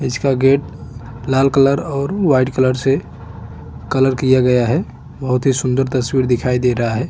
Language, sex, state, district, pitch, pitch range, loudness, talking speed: Hindi, male, Chhattisgarh, Bastar, 130 Hz, 125-135 Hz, -16 LUFS, 170 wpm